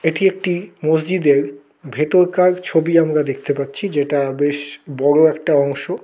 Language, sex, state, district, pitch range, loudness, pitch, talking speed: Bengali, male, West Bengal, Kolkata, 140-175 Hz, -17 LUFS, 150 Hz, 130 wpm